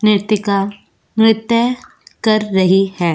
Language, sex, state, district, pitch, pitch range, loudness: Hindi, female, Goa, North and South Goa, 210 Hz, 195-225 Hz, -15 LUFS